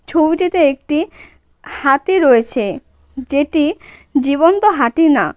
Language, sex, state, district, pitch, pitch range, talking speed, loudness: Bengali, female, West Bengal, Cooch Behar, 300 Hz, 275-330 Hz, 90 wpm, -14 LUFS